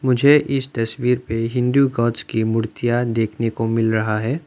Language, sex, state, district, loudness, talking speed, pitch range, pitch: Hindi, male, Arunachal Pradesh, Lower Dibang Valley, -19 LUFS, 175 wpm, 115-130 Hz, 115 Hz